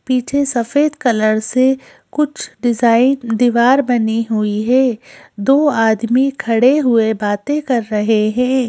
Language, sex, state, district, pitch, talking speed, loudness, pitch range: Hindi, female, Madhya Pradesh, Bhopal, 245 Hz, 125 wpm, -15 LUFS, 225-265 Hz